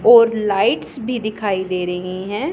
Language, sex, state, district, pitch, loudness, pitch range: Hindi, female, Punjab, Pathankot, 200 Hz, -19 LUFS, 180-230 Hz